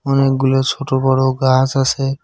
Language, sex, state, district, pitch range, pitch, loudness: Bengali, male, West Bengal, Cooch Behar, 130-135 Hz, 135 Hz, -15 LUFS